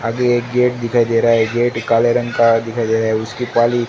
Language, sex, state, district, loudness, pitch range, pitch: Hindi, male, Gujarat, Gandhinagar, -16 LUFS, 115-120 Hz, 120 Hz